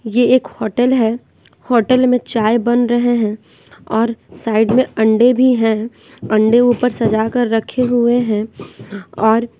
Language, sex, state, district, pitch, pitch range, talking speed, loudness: Hindi, female, Bihar, West Champaran, 230 Hz, 220-245 Hz, 150 wpm, -15 LUFS